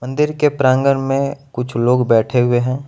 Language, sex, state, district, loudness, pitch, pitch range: Hindi, male, Jharkhand, Palamu, -16 LUFS, 130 Hz, 125-140 Hz